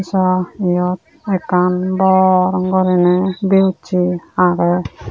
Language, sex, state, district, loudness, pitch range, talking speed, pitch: Chakma, female, Tripura, Unakoti, -15 LUFS, 180-190 Hz, 115 wpm, 185 Hz